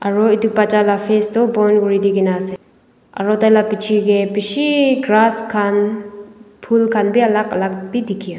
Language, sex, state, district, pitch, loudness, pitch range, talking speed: Nagamese, female, Nagaland, Dimapur, 210 Hz, -15 LUFS, 205-220 Hz, 170 wpm